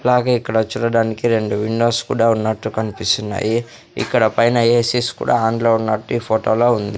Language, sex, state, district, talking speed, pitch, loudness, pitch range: Telugu, male, Andhra Pradesh, Sri Satya Sai, 165 wpm, 115 Hz, -17 LUFS, 110-120 Hz